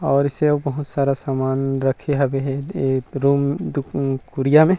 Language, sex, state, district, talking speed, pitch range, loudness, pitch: Chhattisgarhi, male, Chhattisgarh, Rajnandgaon, 160 wpm, 135-145 Hz, -20 LUFS, 140 Hz